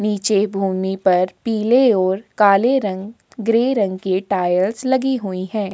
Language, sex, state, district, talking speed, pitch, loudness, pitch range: Hindi, female, Uttarakhand, Tehri Garhwal, 145 wpm, 205 Hz, -18 LUFS, 190-230 Hz